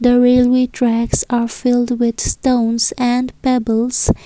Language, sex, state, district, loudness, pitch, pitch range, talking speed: English, female, Assam, Kamrup Metropolitan, -16 LUFS, 245 Hz, 235-250 Hz, 125 wpm